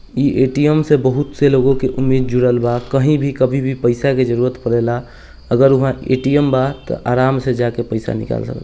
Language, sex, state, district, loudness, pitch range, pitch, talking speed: Hindi, male, Bihar, East Champaran, -16 LUFS, 125-135 Hz, 130 Hz, 210 wpm